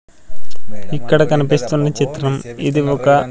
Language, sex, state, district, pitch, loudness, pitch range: Telugu, male, Andhra Pradesh, Sri Satya Sai, 145 Hz, -16 LUFS, 135-150 Hz